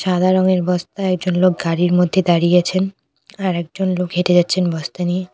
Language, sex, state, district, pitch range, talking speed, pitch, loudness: Bengali, female, West Bengal, Cooch Behar, 175-185 Hz, 180 wpm, 180 Hz, -17 LUFS